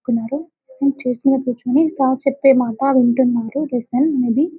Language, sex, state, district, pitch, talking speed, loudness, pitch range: Telugu, female, Telangana, Karimnagar, 265 Hz, 145 wpm, -17 LUFS, 250-280 Hz